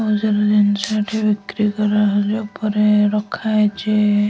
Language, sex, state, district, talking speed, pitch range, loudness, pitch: Odia, male, Odisha, Nuapada, 165 wpm, 205-215 Hz, -18 LUFS, 210 Hz